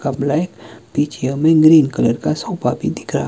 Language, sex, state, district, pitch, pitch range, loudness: Hindi, male, Himachal Pradesh, Shimla, 145 Hz, 135-155 Hz, -16 LUFS